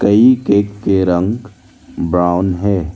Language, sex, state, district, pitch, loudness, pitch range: Hindi, male, Arunachal Pradesh, Lower Dibang Valley, 95 Hz, -14 LUFS, 90-100 Hz